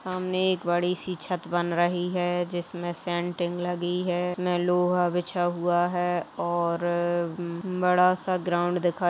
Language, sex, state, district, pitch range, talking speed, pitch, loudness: Hindi, female, Uttar Pradesh, Jalaun, 175-180 Hz, 150 wpm, 175 Hz, -27 LUFS